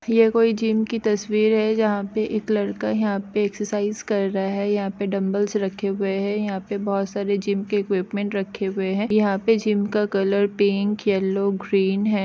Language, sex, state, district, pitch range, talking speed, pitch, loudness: Hindi, female, Andhra Pradesh, Guntur, 195-215 Hz, 205 wpm, 205 Hz, -22 LUFS